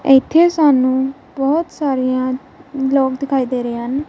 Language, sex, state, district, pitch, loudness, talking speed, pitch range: Punjabi, female, Punjab, Kapurthala, 270 Hz, -16 LUFS, 130 wpm, 260-290 Hz